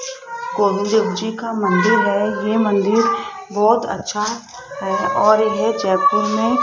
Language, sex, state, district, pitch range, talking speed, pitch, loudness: Hindi, female, Rajasthan, Jaipur, 205-235 Hz, 125 wpm, 220 Hz, -18 LUFS